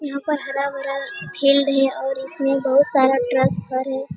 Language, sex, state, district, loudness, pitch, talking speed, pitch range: Hindi, female, Bihar, Jamui, -20 LUFS, 275 Hz, 160 wpm, 265-275 Hz